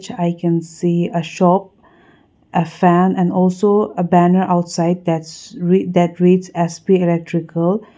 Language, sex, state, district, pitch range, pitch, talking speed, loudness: English, female, Nagaland, Kohima, 170-185 Hz, 180 Hz, 130 wpm, -16 LUFS